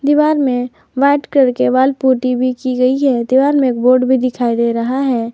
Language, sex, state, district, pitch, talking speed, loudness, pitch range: Hindi, female, Jharkhand, Garhwa, 255 Hz, 225 wpm, -14 LUFS, 250-270 Hz